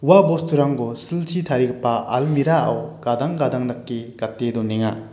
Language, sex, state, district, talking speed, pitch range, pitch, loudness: Garo, male, Meghalaya, West Garo Hills, 130 wpm, 120-150 Hz, 125 Hz, -21 LUFS